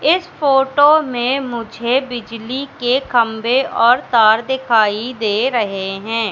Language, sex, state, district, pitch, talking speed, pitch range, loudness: Hindi, female, Madhya Pradesh, Katni, 245 Hz, 125 wpm, 225-270 Hz, -16 LUFS